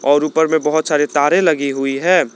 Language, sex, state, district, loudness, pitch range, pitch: Hindi, male, Jharkhand, Garhwa, -15 LUFS, 140-160 Hz, 150 Hz